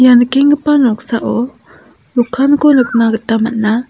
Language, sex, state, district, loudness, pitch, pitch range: Garo, female, Meghalaya, South Garo Hills, -12 LUFS, 245 Hz, 230-275 Hz